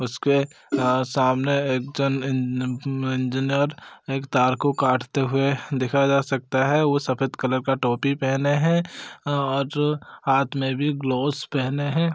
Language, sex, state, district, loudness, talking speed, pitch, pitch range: Hindi, male, Chhattisgarh, Bastar, -23 LUFS, 160 wpm, 135 Hz, 130-140 Hz